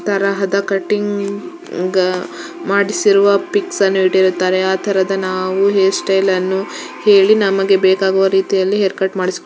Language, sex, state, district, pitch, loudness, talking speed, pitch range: Kannada, female, Karnataka, Shimoga, 195 Hz, -15 LUFS, 140 wpm, 190-200 Hz